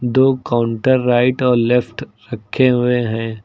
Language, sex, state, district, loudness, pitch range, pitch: Hindi, male, Uttar Pradesh, Lucknow, -16 LUFS, 115-130 Hz, 120 Hz